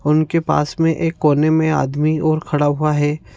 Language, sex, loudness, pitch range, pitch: Konkani, male, -17 LUFS, 150-160 Hz, 155 Hz